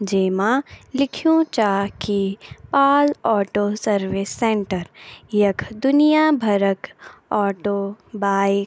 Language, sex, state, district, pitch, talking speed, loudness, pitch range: Garhwali, female, Uttarakhand, Tehri Garhwal, 205 Hz, 105 wpm, -20 LUFS, 195-265 Hz